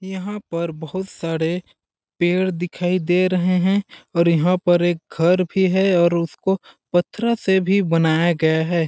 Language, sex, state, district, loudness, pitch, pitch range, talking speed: Hindi, male, Chhattisgarh, Balrampur, -20 LUFS, 175 Hz, 170-190 Hz, 160 wpm